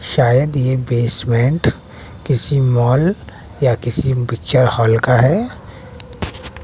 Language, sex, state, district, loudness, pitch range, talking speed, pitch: Hindi, male, Bihar, West Champaran, -16 LUFS, 115-130 Hz, 100 wpm, 125 Hz